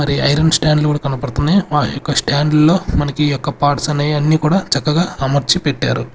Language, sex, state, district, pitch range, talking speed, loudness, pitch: Telugu, male, Andhra Pradesh, Sri Satya Sai, 145-155 Hz, 195 wpm, -15 LUFS, 150 Hz